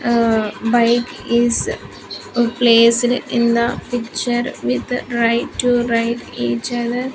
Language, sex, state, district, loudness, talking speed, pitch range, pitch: English, female, Andhra Pradesh, Sri Satya Sai, -17 LUFS, 110 wpm, 230-240 Hz, 235 Hz